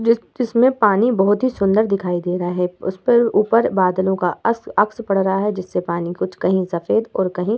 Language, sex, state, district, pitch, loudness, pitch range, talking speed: Hindi, female, Bihar, Vaishali, 195 Hz, -18 LUFS, 180-230 Hz, 220 wpm